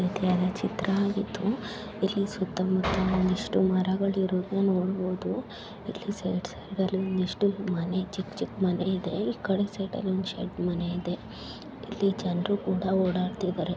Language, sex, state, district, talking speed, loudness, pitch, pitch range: Kannada, female, Karnataka, Chamarajanagar, 130 wpm, -29 LUFS, 190 Hz, 185-200 Hz